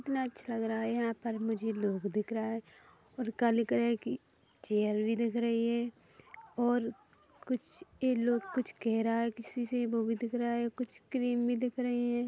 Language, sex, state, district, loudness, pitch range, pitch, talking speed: Hindi, female, Chhattisgarh, Bilaspur, -34 LUFS, 225-245 Hz, 235 Hz, 200 wpm